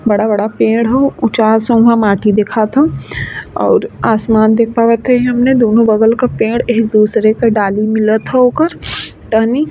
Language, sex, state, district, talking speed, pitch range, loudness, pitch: Bhojpuri, female, Bihar, East Champaran, 150 wpm, 215-240 Hz, -12 LUFS, 225 Hz